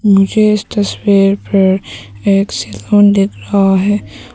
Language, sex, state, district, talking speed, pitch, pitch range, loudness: Hindi, female, Arunachal Pradesh, Papum Pare, 125 wpm, 195 Hz, 195-205 Hz, -12 LUFS